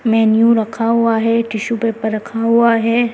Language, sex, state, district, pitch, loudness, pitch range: Hindi, female, Delhi, New Delhi, 230 Hz, -15 LUFS, 225-230 Hz